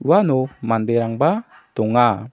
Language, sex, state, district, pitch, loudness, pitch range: Garo, male, Meghalaya, South Garo Hills, 120 Hz, -19 LUFS, 115-140 Hz